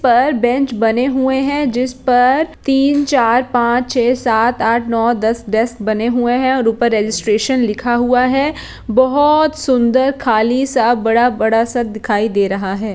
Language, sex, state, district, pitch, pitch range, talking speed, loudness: Hindi, female, Bihar, Jahanabad, 245 Hz, 225-260 Hz, 160 wpm, -14 LUFS